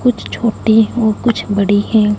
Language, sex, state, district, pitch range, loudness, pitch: Hindi, female, Punjab, Fazilka, 205-235 Hz, -14 LUFS, 220 Hz